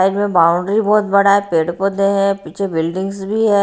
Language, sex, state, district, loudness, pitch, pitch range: Hindi, female, Haryana, Rohtak, -16 LUFS, 195 Hz, 175-200 Hz